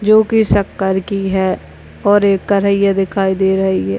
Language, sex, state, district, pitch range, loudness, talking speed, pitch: Hindi, male, Bihar, Purnia, 190-200 Hz, -14 LUFS, 180 wpm, 195 Hz